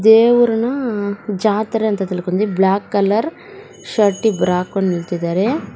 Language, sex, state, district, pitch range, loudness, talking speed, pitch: Kannada, female, Karnataka, Bangalore, 190-225 Hz, -17 LUFS, 105 wpm, 205 Hz